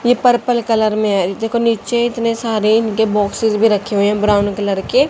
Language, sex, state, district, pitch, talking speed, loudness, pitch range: Hindi, female, Haryana, Jhajjar, 220 Hz, 200 wpm, -15 LUFS, 205-235 Hz